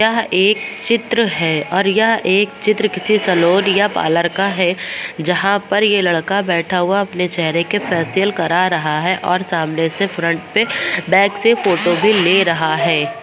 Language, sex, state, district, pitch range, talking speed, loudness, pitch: Hindi, female, Bihar, Madhepura, 170-205 Hz, 175 wpm, -15 LUFS, 185 Hz